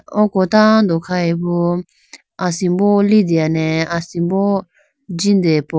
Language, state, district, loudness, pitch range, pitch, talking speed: Idu Mishmi, Arunachal Pradesh, Lower Dibang Valley, -16 LUFS, 170-200 Hz, 180 Hz, 95 wpm